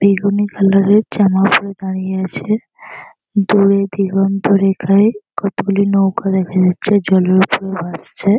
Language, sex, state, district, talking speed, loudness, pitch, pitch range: Bengali, female, West Bengal, North 24 Parganas, 120 wpm, -14 LUFS, 195 Hz, 190-200 Hz